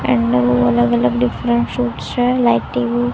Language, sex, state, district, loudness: Gujarati, female, Gujarat, Gandhinagar, -16 LUFS